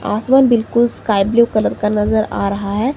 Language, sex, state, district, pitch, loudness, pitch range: Hindi, female, Himachal Pradesh, Shimla, 215 Hz, -15 LUFS, 210-235 Hz